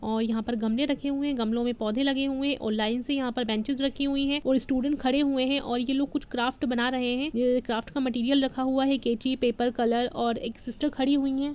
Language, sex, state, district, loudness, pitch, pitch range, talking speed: Hindi, female, Jharkhand, Jamtara, -27 LUFS, 260 Hz, 240-275 Hz, 260 wpm